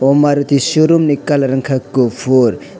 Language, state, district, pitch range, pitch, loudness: Kokborok, Tripura, West Tripura, 130-145 Hz, 140 Hz, -13 LUFS